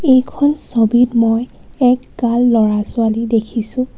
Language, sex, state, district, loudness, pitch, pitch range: Assamese, female, Assam, Kamrup Metropolitan, -15 LUFS, 235 Hz, 225-255 Hz